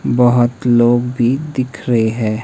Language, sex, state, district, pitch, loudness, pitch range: Hindi, male, Himachal Pradesh, Shimla, 120 Hz, -15 LUFS, 120-125 Hz